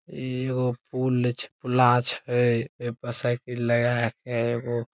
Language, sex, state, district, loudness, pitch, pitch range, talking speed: Maithili, male, Bihar, Saharsa, -25 LUFS, 120 Hz, 120-125 Hz, 170 wpm